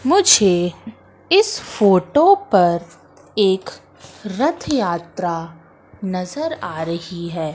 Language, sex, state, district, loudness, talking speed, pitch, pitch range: Hindi, female, Madhya Pradesh, Katni, -18 LUFS, 85 wpm, 190 Hz, 170-280 Hz